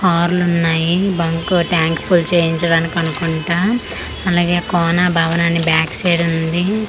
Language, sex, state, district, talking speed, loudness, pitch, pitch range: Telugu, female, Andhra Pradesh, Manyam, 130 wpm, -16 LUFS, 170 Hz, 165-175 Hz